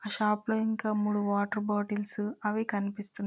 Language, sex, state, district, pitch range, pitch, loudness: Telugu, female, Telangana, Karimnagar, 205-215 Hz, 210 Hz, -31 LUFS